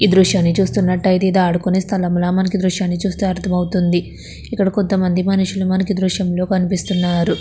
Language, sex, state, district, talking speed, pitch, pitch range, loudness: Telugu, female, Andhra Pradesh, Krishna, 185 wpm, 185 Hz, 180-195 Hz, -17 LUFS